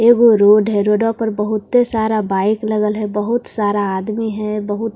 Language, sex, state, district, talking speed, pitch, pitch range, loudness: Hindi, female, Bihar, Katihar, 195 wpm, 215 Hz, 210-225 Hz, -16 LUFS